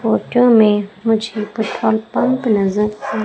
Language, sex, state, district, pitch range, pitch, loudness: Hindi, female, Madhya Pradesh, Umaria, 210-230 Hz, 220 Hz, -16 LUFS